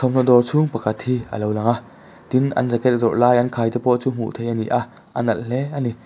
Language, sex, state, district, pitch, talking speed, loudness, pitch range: Mizo, male, Mizoram, Aizawl, 120 Hz, 285 wpm, -20 LUFS, 115-125 Hz